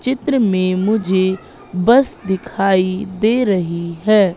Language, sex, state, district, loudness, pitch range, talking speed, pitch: Hindi, female, Madhya Pradesh, Katni, -16 LUFS, 185-220 Hz, 110 wpm, 195 Hz